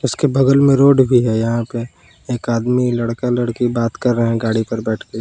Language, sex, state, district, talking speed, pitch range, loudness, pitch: Hindi, male, Jharkhand, Palamu, 230 wpm, 115-125 Hz, -16 LUFS, 120 Hz